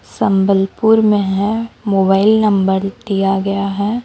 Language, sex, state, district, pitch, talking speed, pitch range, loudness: Hindi, female, Odisha, Sambalpur, 200 Hz, 120 wpm, 195-215 Hz, -15 LUFS